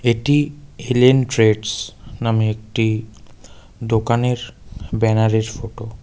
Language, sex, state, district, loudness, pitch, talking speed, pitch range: Bengali, male, West Bengal, Darjeeling, -18 LUFS, 115 Hz, 90 wpm, 110-120 Hz